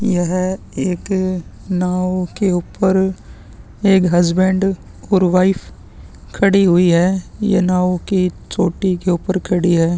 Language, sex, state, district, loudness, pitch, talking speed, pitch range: Hindi, male, Chhattisgarh, Sukma, -17 LUFS, 185 Hz, 120 wpm, 175-190 Hz